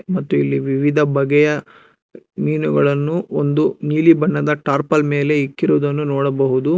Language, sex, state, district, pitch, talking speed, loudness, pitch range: Kannada, male, Karnataka, Bangalore, 145 Hz, 105 wpm, -17 LUFS, 135-150 Hz